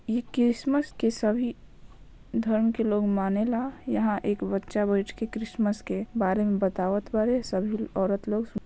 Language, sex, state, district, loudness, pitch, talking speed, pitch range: Bhojpuri, female, Bihar, Saran, -27 LUFS, 215 Hz, 160 wpm, 200-230 Hz